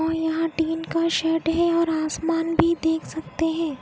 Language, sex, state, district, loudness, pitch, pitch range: Hindi, female, Odisha, Khordha, -23 LUFS, 325 Hz, 320-330 Hz